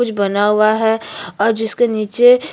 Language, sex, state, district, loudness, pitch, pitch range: Hindi, female, Chhattisgarh, Bastar, -15 LUFS, 220 Hz, 210-235 Hz